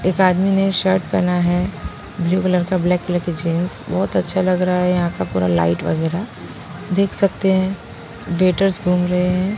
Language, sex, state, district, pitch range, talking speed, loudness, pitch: Hindi, female, Punjab, Pathankot, 175-190 Hz, 180 wpm, -18 LUFS, 180 Hz